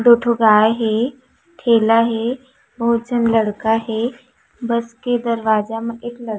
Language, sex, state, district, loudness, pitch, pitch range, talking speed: Chhattisgarhi, female, Chhattisgarh, Raigarh, -18 LUFS, 235 Hz, 225-240 Hz, 150 wpm